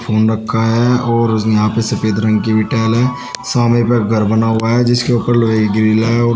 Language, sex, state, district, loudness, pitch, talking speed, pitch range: Hindi, male, Uttar Pradesh, Shamli, -14 LUFS, 115 Hz, 255 wpm, 110-120 Hz